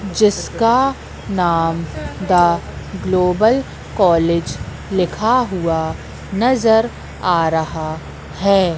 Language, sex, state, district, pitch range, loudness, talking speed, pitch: Hindi, female, Madhya Pradesh, Katni, 165-215 Hz, -17 LUFS, 75 wpm, 180 Hz